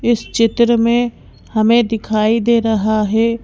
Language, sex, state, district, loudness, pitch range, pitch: Hindi, female, Madhya Pradesh, Bhopal, -15 LUFS, 220-235 Hz, 230 Hz